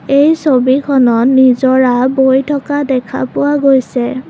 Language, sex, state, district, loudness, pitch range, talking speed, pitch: Assamese, female, Assam, Kamrup Metropolitan, -11 LUFS, 250-280 Hz, 110 wpm, 260 Hz